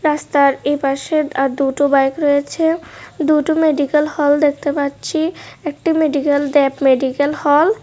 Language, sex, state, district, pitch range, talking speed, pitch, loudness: Bengali, female, Tripura, West Tripura, 280-310 Hz, 130 wpm, 290 Hz, -16 LUFS